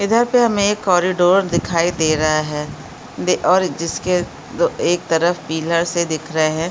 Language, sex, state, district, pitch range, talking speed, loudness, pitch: Hindi, female, Uttarakhand, Uttarkashi, 160-185 Hz, 160 wpm, -17 LUFS, 175 Hz